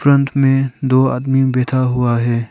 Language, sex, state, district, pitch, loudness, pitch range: Hindi, male, Arunachal Pradesh, Papum Pare, 130 Hz, -15 LUFS, 125-135 Hz